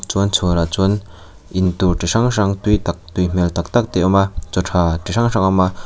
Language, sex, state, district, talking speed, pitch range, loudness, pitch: Mizo, male, Mizoram, Aizawl, 255 wpm, 85-100 Hz, -17 LUFS, 95 Hz